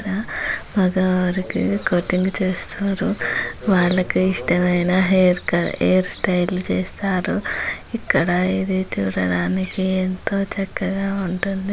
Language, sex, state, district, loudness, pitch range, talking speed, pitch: Telugu, female, Andhra Pradesh, Guntur, -20 LUFS, 180-195 Hz, 80 wpm, 185 Hz